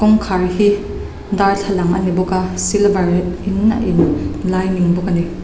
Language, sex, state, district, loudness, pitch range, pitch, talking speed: Mizo, female, Mizoram, Aizawl, -16 LUFS, 180-200 Hz, 185 Hz, 145 wpm